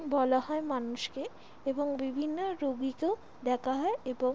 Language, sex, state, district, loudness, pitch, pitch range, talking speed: Bengali, female, West Bengal, Jalpaiguri, -33 LUFS, 270 Hz, 255-305 Hz, 140 wpm